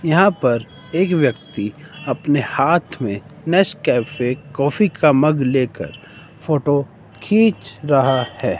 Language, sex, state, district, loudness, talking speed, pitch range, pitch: Hindi, male, Himachal Pradesh, Shimla, -18 LUFS, 110 wpm, 130-165 Hz, 145 Hz